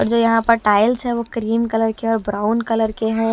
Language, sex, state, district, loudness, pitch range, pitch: Hindi, female, Himachal Pradesh, Shimla, -18 LUFS, 220-230 Hz, 225 Hz